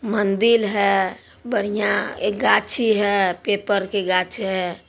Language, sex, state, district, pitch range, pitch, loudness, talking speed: Hindi, female, Bihar, Supaul, 190-210 Hz, 205 Hz, -20 LUFS, 125 wpm